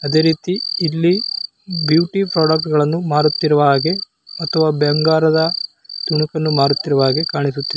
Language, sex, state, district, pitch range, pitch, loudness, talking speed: Kannada, male, Karnataka, Belgaum, 150-165 Hz, 160 Hz, -16 LUFS, 95 wpm